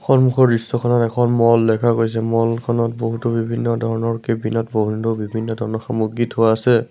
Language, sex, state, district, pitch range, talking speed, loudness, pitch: Assamese, male, Assam, Sonitpur, 115-120 Hz, 155 wpm, -18 LUFS, 115 Hz